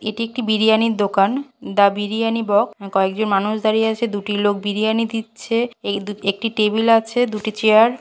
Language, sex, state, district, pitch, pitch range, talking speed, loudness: Bengali, female, West Bengal, Purulia, 215 Hz, 205-230 Hz, 180 wpm, -19 LUFS